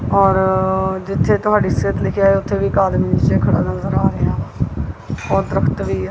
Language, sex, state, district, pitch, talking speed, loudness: Punjabi, female, Punjab, Kapurthala, 190 Hz, 195 wpm, -17 LUFS